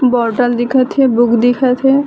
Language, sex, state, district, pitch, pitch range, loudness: Chhattisgarhi, female, Chhattisgarh, Bilaspur, 250 Hz, 240-265 Hz, -12 LUFS